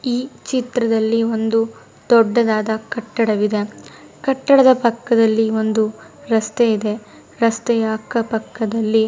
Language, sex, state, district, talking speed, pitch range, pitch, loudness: Kannada, female, Karnataka, Mysore, 80 wpm, 220-235 Hz, 225 Hz, -18 LUFS